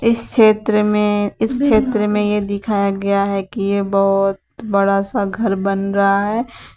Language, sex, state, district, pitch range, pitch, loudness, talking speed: Hindi, female, Uttar Pradesh, Shamli, 200-215 Hz, 205 Hz, -17 LUFS, 170 wpm